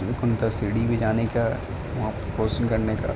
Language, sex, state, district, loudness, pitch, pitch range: Hindi, male, Uttar Pradesh, Ghazipur, -25 LUFS, 110 Hz, 110-120 Hz